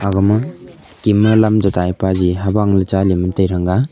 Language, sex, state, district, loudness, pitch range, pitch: Wancho, male, Arunachal Pradesh, Longding, -15 LUFS, 90-105 Hz, 95 Hz